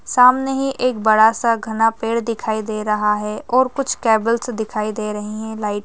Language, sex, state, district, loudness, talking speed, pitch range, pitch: Hindi, female, Rajasthan, Nagaur, -18 LUFS, 205 wpm, 215-240 Hz, 220 Hz